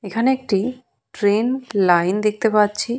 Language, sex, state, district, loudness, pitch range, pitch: Bengali, female, West Bengal, Purulia, -19 LUFS, 205-245 Hz, 210 Hz